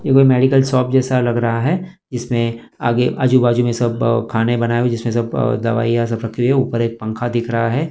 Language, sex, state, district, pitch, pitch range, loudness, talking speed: Hindi, male, Maharashtra, Mumbai Suburban, 120 Hz, 115-130 Hz, -17 LUFS, 230 wpm